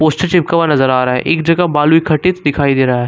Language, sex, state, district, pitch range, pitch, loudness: Hindi, male, Uttar Pradesh, Lucknow, 135-165 Hz, 155 Hz, -12 LUFS